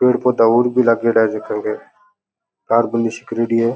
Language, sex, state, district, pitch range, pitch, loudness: Rajasthani, male, Rajasthan, Churu, 115-125 Hz, 115 Hz, -17 LUFS